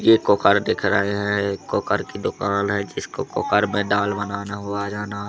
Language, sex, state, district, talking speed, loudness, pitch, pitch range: Hindi, male, Madhya Pradesh, Katni, 190 wpm, -22 LUFS, 100 Hz, 100-105 Hz